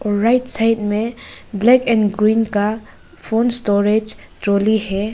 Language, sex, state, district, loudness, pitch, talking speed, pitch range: Hindi, female, Arunachal Pradesh, Papum Pare, -17 LUFS, 215 Hz, 130 wpm, 205-230 Hz